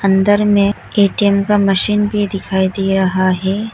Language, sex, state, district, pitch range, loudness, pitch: Hindi, female, Arunachal Pradesh, Lower Dibang Valley, 190-205 Hz, -14 LUFS, 200 Hz